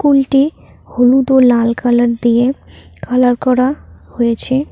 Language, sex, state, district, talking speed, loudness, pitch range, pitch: Bengali, female, West Bengal, Cooch Behar, 125 wpm, -13 LUFS, 240-270 Hz, 250 Hz